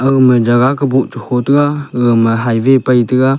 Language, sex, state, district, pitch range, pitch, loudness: Wancho, male, Arunachal Pradesh, Longding, 120-135 Hz, 125 Hz, -12 LUFS